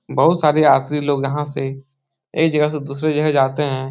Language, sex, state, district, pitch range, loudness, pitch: Hindi, male, Bihar, Supaul, 135-150 Hz, -18 LUFS, 145 Hz